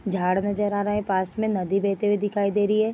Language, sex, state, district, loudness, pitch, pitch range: Hindi, female, Bihar, Vaishali, -24 LUFS, 205 Hz, 195-205 Hz